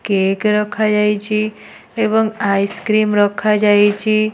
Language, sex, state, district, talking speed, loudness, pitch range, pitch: Odia, female, Odisha, Nuapada, 70 wpm, -16 LUFS, 205-215 Hz, 210 Hz